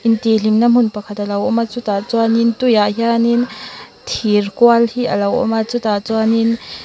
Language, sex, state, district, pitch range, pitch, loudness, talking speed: Mizo, female, Mizoram, Aizawl, 215-235 Hz, 230 Hz, -15 LUFS, 165 wpm